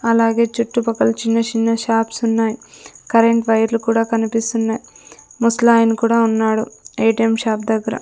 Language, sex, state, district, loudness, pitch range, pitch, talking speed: Telugu, female, Andhra Pradesh, Sri Satya Sai, -17 LUFS, 225-230 Hz, 225 Hz, 120 wpm